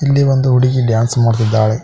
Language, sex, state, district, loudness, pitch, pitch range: Kannada, male, Karnataka, Koppal, -13 LUFS, 120 Hz, 115-130 Hz